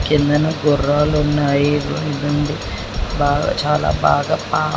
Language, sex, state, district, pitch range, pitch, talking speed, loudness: Telugu, male, Andhra Pradesh, Srikakulam, 145-150 Hz, 145 Hz, 115 wpm, -18 LUFS